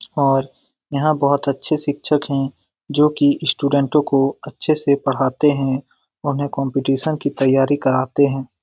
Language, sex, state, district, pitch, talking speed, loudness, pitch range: Hindi, male, Bihar, Lakhisarai, 140 Hz, 140 wpm, -18 LUFS, 135-145 Hz